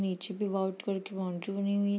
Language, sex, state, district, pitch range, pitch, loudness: Hindi, female, Bihar, East Champaran, 190-200 Hz, 195 Hz, -33 LUFS